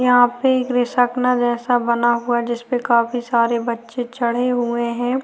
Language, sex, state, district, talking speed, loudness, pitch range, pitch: Hindi, female, Bihar, Vaishali, 160 wpm, -19 LUFS, 235-250 Hz, 240 Hz